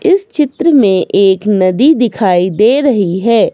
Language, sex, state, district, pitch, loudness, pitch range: Hindi, female, Himachal Pradesh, Shimla, 225 Hz, -11 LUFS, 190-290 Hz